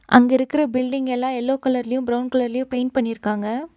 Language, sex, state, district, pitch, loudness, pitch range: Tamil, female, Tamil Nadu, Nilgiris, 255 Hz, -21 LUFS, 245-260 Hz